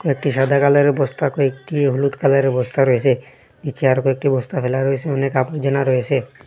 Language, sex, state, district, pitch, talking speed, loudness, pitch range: Bengali, male, Assam, Hailakandi, 135 Hz, 165 wpm, -18 LUFS, 130-140 Hz